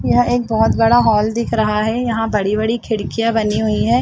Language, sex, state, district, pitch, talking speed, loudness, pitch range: Hindi, female, Chhattisgarh, Rajnandgaon, 225 Hz, 210 wpm, -16 LUFS, 215-235 Hz